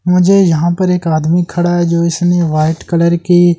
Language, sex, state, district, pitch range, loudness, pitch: Hindi, male, Delhi, New Delhi, 170-175 Hz, -12 LUFS, 175 Hz